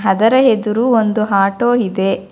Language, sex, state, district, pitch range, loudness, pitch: Kannada, female, Karnataka, Bangalore, 195-240 Hz, -14 LUFS, 215 Hz